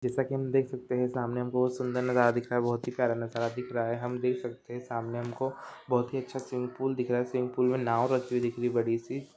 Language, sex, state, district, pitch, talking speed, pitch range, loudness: Hindi, male, Maharashtra, Pune, 125 Hz, 295 wpm, 120-125 Hz, -31 LUFS